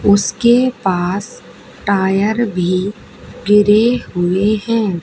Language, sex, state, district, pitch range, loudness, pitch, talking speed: Hindi, female, Haryana, Charkhi Dadri, 190-230 Hz, -15 LUFS, 205 Hz, 85 wpm